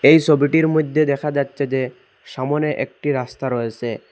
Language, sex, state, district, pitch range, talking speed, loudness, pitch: Bengali, male, Assam, Hailakandi, 130-150 Hz, 145 wpm, -19 LUFS, 140 Hz